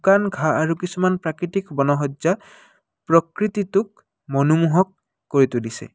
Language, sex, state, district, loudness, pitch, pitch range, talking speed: Assamese, male, Assam, Kamrup Metropolitan, -21 LUFS, 170 Hz, 145-195 Hz, 100 wpm